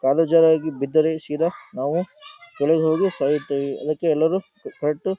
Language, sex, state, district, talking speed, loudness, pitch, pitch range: Kannada, male, Karnataka, Dharwad, 140 wpm, -21 LUFS, 160 Hz, 150-180 Hz